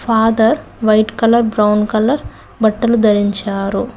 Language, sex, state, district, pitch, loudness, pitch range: Telugu, female, Telangana, Mahabubabad, 220 Hz, -14 LUFS, 210-230 Hz